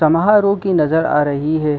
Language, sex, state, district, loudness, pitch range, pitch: Hindi, male, Jharkhand, Sahebganj, -15 LUFS, 150-190 Hz, 160 Hz